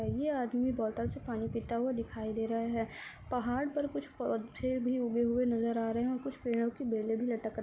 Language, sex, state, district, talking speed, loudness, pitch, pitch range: Hindi, female, Bihar, Samastipur, 235 wpm, -34 LUFS, 235 Hz, 230-255 Hz